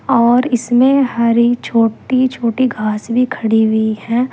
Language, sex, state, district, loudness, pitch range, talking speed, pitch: Hindi, female, Uttar Pradesh, Saharanpur, -14 LUFS, 230-255 Hz, 140 wpm, 235 Hz